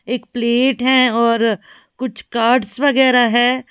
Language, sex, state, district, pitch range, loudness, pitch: Hindi, female, Chhattisgarh, Raipur, 235-255 Hz, -15 LUFS, 245 Hz